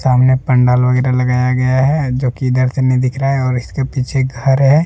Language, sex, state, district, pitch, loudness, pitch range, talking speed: Hindi, male, Jharkhand, Deoghar, 130 Hz, -14 LUFS, 125-135 Hz, 235 wpm